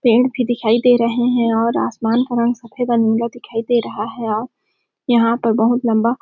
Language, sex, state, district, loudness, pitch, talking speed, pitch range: Hindi, female, Chhattisgarh, Sarguja, -17 LUFS, 235 Hz, 205 wpm, 230-245 Hz